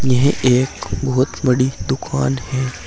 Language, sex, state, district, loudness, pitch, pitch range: Hindi, male, Uttar Pradesh, Saharanpur, -18 LUFS, 130 Hz, 125-130 Hz